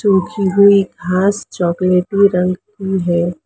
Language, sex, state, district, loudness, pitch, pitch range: Hindi, female, Maharashtra, Mumbai Suburban, -15 LUFS, 190 Hz, 180-200 Hz